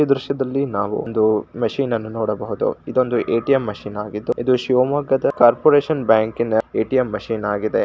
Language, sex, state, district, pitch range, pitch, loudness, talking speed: Kannada, male, Karnataka, Shimoga, 110-135 Hz, 120 Hz, -19 LUFS, 130 wpm